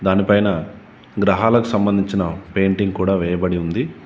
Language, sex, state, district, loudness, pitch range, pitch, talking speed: Telugu, male, Telangana, Komaram Bheem, -18 LUFS, 95-100 Hz, 95 Hz, 120 wpm